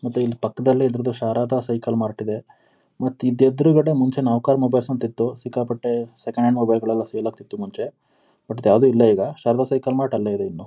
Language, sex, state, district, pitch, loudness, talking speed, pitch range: Kannada, male, Karnataka, Mysore, 125 Hz, -20 LUFS, 190 wpm, 115-130 Hz